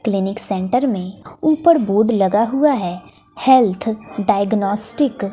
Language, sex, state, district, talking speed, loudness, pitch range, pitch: Hindi, female, Bihar, West Champaran, 125 wpm, -17 LUFS, 200-260 Hz, 215 Hz